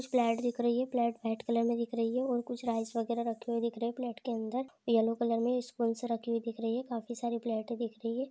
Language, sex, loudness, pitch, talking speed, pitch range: Hindi, female, -33 LUFS, 235 Hz, 265 wpm, 230-245 Hz